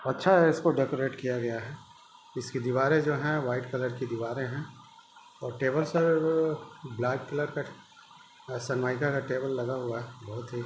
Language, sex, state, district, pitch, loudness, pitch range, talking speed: Hindi, male, Chhattisgarh, Rajnandgaon, 135 Hz, -29 LUFS, 125-150 Hz, 170 wpm